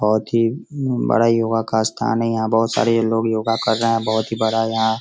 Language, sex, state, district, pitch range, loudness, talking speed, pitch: Hindi, male, Bihar, Sitamarhi, 110-115 Hz, -19 LUFS, 265 wpm, 115 Hz